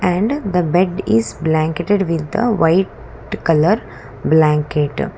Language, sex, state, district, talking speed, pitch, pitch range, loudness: English, female, Karnataka, Bangalore, 115 wpm, 170 Hz, 155-190 Hz, -17 LUFS